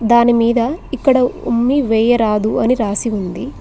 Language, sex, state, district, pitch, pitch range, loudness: Telugu, female, Telangana, Mahabubabad, 235 Hz, 220-255 Hz, -15 LUFS